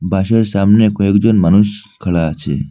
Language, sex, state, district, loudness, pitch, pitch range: Bengali, male, Assam, Hailakandi, -13 LUFS, 100 Hz, 90-105 Hz